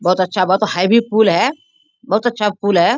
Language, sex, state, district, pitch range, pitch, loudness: Hindi, female, Bihar, Bhagalpur, 185-230 Hz, 210 Hz, -15 LUFS